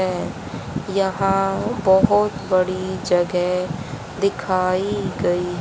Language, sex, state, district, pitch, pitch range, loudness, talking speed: Hindi, male, Haryana, Rohtak, 185 Hz, 180-195 Hz, -21 LUFS, 75 wpm